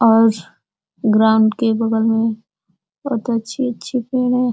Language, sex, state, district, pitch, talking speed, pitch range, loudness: Hindi, female, Uttar Pradesh, Deoria, 225 Hz, 130 wpm, 220-240 Hz, -17 LUFS